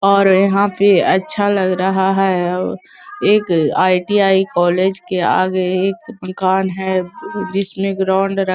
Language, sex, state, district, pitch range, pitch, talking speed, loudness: Hindi, female, Bihar, Gaya, 185-195 Hz, 190 Hz, 140 wpm, -15 LUFS